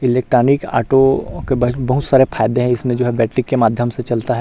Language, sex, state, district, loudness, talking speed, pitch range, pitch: Hindi, male, Chhattisgarh, Rajnandgaon, -16 LUFS, 215 wpm, 120-130 Hz, 125 Hz